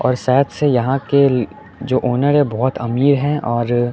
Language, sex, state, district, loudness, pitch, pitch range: Hindi, male, Chandigarh, Chandigarh, -16 LUFS, 130 Hz, 120-140 Hz